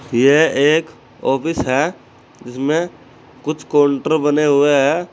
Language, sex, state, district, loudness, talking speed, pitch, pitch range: Hindi, male, Uttar Pradesh, Saharanpur, -16 LUFS, 115 wpm, 145 Hz, 135-155 Hz